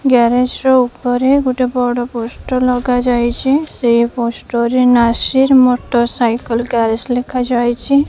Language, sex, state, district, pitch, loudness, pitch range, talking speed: Odia, female, Odisha, Khordha, 245 Hz, -14 LUFS, 235-255 Hz, 120 wpm